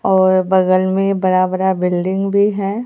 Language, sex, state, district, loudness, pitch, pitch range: Hindi, female, Bihar, Katihar, -15 LUFS, 190 Hz, 185-195 Hz